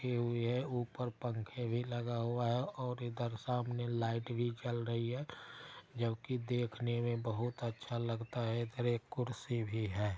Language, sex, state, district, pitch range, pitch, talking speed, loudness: Maithili, male, Bihar, Darbhanga, 115-120 Hz, 120 Hz, 175 wpm, -38 LUFS